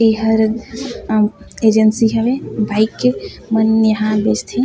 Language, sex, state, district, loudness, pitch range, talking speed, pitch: Chhattisgarhi, female, Chhattisgarh, Sarguja, -16 LUFS, 215-230 Hz, 130 wpm, 220 Hz